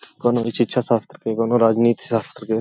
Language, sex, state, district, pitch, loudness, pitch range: Bhojpuri, male, Uttar Pradesh, Gorakhpur, 115 Hz, -20 LUFS, 115-120 Hz